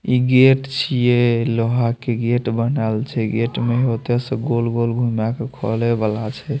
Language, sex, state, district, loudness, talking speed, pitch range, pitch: Maithili, male, Bihar, Saharsa, -19 LUFS, 165 wpm, 115-125 Hz, 120 Hz